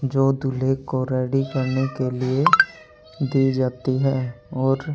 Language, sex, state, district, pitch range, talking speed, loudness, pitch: Hindi, male, Haryana, Charkhi Dadri, 130-135 Hz, 135 wpm, -22 LUFS, 130 Hz